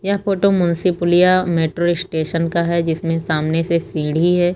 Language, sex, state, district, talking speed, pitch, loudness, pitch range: Hindi, female, Uttar Pradesh, Lucknow, 170 wpm, 170 Hz, -17 LUFS, 165-180 Hz